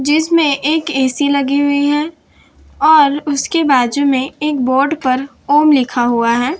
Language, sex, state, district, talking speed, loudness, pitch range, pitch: Hindi, female, Gujarat, Valsad, 155 wpm, -14 LUFS, 265-300 Hz, 285 Hz